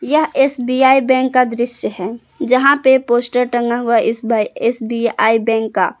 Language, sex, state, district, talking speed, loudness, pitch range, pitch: Hindi, female, Jharkhand, Palamu, 150 wpm, -15 LUFS, 230-260 Hz, 240 Hz